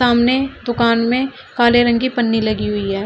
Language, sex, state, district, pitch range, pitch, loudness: Hindi, female, Uttar Pradesh, Shamli, 225-250 Hz, 240 Hz, -16 LUFS